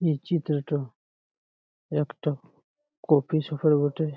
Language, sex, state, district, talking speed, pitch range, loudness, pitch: Bengali, male, West Bengal, Malda, 100 wpm, 140-160 Hz, -26 LUFS, 150 Hz